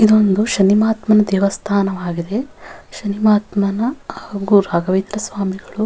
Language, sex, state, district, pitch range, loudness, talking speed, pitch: Kannada, female, Karnataka, Bellary, 195-215 Hz, -17 LUFS, 115 wpm, 205 Hz